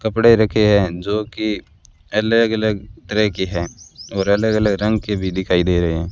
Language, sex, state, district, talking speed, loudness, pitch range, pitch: Hindi, male, Rajasthan, Bikaner, 195 wpm, -18 LUFS, 95-110 Hz, 105 Hz